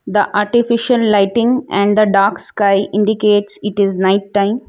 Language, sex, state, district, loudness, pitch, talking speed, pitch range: English, female, Gujarat, Valsad, -14 LUFS, 205 Hz, 155 wpm, 200-220 Hz